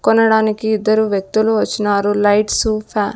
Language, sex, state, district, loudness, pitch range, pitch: Telugu, female, Andhra Pradesh, Sri Satya Sai, -15 LUFS, 205-220 Hz, 215 Hz